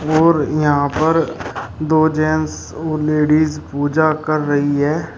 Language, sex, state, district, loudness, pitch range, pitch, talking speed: Hindi, male, Uttar Pradesh, Shamli, -17 LUFS, 150-155 Hz, 155 Hz, 125 wpm